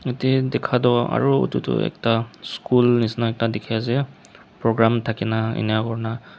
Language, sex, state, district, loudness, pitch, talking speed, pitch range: Nagamese, male, Nagaland, Dimapur, -21 LUFS, 115 Hz, 150 wpm, 110-125 Hz